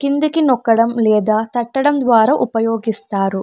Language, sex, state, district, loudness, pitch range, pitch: Telugu, female, Andhra Pradesh, Anantapur, -15 LUFS, 220-270 Hz, 230 Hz